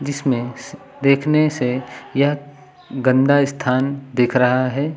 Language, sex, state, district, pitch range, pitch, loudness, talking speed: Hindi, male, Uttar Pradesh, Lucknow, 125-145 Hz, 135 Hz, -18 LUFS, 110 wpm